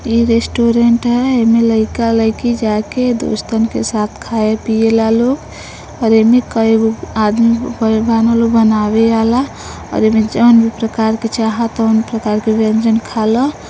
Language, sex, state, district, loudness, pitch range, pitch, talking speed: Bhojpuri, female, Uttar Pradesh, Deoria, -13 LUFS, 220-235 Hz, 225 Hz, 145 wpm